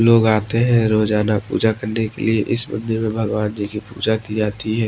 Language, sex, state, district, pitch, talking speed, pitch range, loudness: Hindi, male, Maharashtra, Washim, 110 Hz, 220 wpm, 105-115 Hz, -19 LUFS